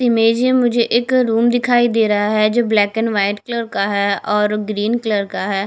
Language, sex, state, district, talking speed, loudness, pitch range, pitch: Hindi, female, Punjab, Kapurthala, 220 wpm, -16 LUFS, 205-240 Hz, 225 Hz